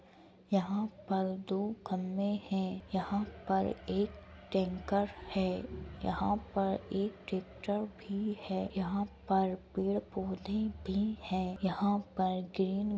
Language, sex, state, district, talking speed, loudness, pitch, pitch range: Hindi, female, Uttar Pradesh, Etah, 120 wpm, -35 LUFS, 195 Hz, 190-205 Hz